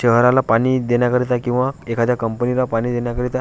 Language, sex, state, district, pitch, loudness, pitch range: Marathi, male, Maharashtra, Washim, 120 Hz, -18 LUFS, 120-125 Hz